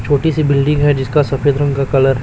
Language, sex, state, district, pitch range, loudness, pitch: Hindi, male, Chhattisgarh, Raipur, 135-145 Hz, -14 LUFS, 140 Hz